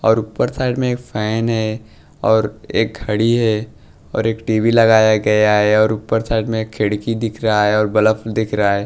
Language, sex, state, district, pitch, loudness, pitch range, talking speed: Hindi, male, Bihar, West Champaran, 110 Hz, -17 LUFS, 105-115 Hz, 210 wpm